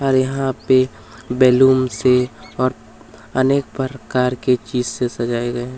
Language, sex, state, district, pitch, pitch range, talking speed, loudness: Hindi, male, Chhattisgarh, Kabirdham, 125 Hz, 120-130 Hz, 145 wpm, -18 LUFS